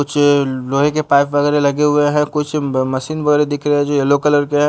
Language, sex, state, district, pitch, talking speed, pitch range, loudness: Hindi, male, Haryana, Jhajjar, 145 Hz, 255 wpm, 140-150 Hz, -15 LUFS